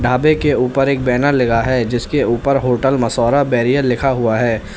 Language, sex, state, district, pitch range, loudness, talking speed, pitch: Hindi, male, Uttar Pradesh, Lalitpur, 120-140 Hz, -15 LUFS, 190 wpm, 125 Hz